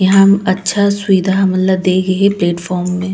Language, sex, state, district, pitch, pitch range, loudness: Chhattisgarhi, female, Chhattisgarh, Raigarh, 190 Hz, 185-195 Hz, -13 LUFS